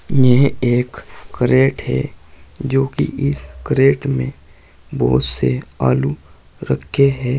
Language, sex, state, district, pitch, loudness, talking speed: Hindi, male, Uttar Pradesh, Saharanpur, 125 Hz, -17 LUFS, 105 wpm